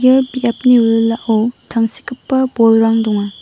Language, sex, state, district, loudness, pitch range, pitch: Garo, female, Meghalaya, West Garo Hills, -14 LUFS, 225-250 Hz, 230 Hz